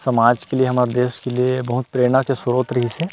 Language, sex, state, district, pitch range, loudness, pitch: Chhattisgarhi, male, Chhattisgarh, Rajnandgaon, 125-130 Hz, -19 LUFS, 125 Hz